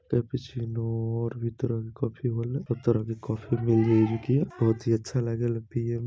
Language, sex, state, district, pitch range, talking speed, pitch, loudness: Bhojpuri, male, Uttar Pradesh, Deoria, 115-120 Hz, 180 wpm, 115 Hz, -28 LUFS